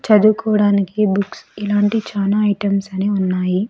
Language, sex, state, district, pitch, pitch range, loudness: Telugu, female, Andhra Pradesh, Sri Satya Sai, 205 Hz, 195-210 Hz, -17 LUFS